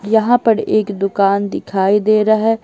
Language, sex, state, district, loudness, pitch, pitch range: Hindi, female, Bihar, Patna, -15 LUFS, 215 Hz, 200-220 Hz